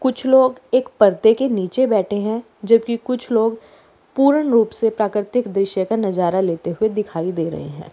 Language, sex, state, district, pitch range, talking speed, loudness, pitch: Hindi, female, Uttar Pradesh, Lalitpur, 195-245 Hz, 180 wpm, -18 LUFS, 220 Hz